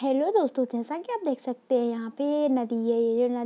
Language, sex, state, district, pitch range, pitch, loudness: Hindi, female, Bihar, Darbhanga, 235-285 Hz, 255 Hz, -27 LUFS